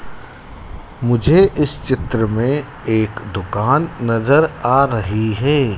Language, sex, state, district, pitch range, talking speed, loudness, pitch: Hindi, male, Madhya Pradesh, Dhar, 110-145 Hz, 105 wpm, -17 LUFS, 120 Hz